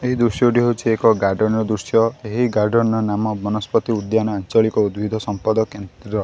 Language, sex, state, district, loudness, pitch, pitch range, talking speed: Odia, male, Odisha, Khordha, -19 LUFS, 110 Hz, 105-115 Hz, 175 wpm